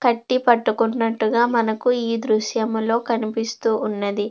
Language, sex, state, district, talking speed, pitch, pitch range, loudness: Telugu, female, Andhra Pradesh, Anantapur, 95 wpm, 230 Hz, 220-235 Hz, -20 LUFS